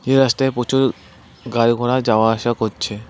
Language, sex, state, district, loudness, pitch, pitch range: Bengali, male, West Bengal, Cooch Behar, -18 LUFS, 120 Hz, 110-130 Hz